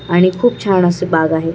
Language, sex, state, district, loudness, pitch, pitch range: Marathi, female, Maharashtra, Chandrapur, -14 LUFS, 175 Hz, 165-185 Hz